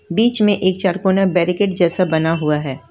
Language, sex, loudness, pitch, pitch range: Hindi, female, -16 LUFS, 185 Hz, 165-195 Hz